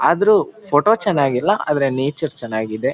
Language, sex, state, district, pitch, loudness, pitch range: Kannada, male, Karnataka, Mysore, 145 Hz, -18 LUFS, 130-160 Hz